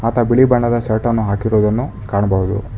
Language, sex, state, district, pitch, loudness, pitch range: Kannada, male, Karnataka, Bangalore, 110 Hz, -16 LUFS, 105-120 Hz